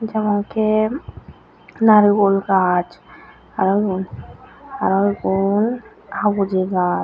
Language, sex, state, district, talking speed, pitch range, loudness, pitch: Chakma, female, Tripura, Unakoti, 75 wpm, 190-215 Hz, -18 LUFS, 205 Hz